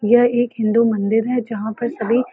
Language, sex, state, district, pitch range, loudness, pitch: Hindi, female, Uttar Pradesh, Varanasi, 220-240 Hz, -18 LUFS, 230 Hz